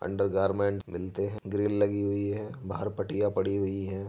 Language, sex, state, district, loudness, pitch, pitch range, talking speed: Hindi, male, Uttar Pradesh, Jyotiba Phule Nagar, -30 LUFS, 100 Hz, 95-100 Hz, 175 wpm